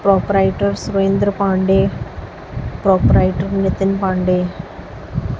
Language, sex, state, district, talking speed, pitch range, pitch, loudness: Hindi, female, Chhattisgarh, Raipur, 65 wpm, 185-195 Hz, 195 Hz, -16 LUFS